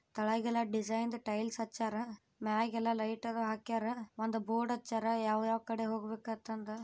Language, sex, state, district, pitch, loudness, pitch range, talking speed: Kannada, female, Karnataka, Bijapur, 225 Hz, -37 LUFS, 220-230 Hz, 150 wpm